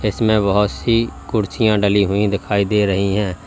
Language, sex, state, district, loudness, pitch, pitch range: Hindi, male, Uttar Pradesh, Lalitpur, -17 LUFS, 105 Hz, 100-110 Hz